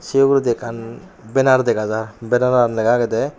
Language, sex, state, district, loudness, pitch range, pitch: Chakma, male, Tripura, Unakoti, -17 LUFS, 115-130 Hz, 120 Hz